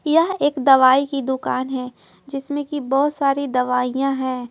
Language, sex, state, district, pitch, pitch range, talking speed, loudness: Hindi, female, Bihar, Patna, 275 Hz, 260-285 Hz, 145 wpm, -19 LUFS